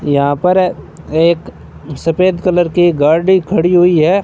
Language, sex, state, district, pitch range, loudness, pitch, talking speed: Hindi, male, Rajasthan, Bikaner, 160-180 Hz, -12 LUFS, 175 Hz, 140 wpm